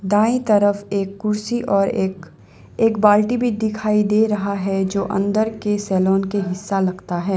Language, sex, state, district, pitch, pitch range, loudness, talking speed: Hindi, female, Assam, Sonitpur, 205 Hz, 195-215 Hz, -19 LUFS, 170 wpm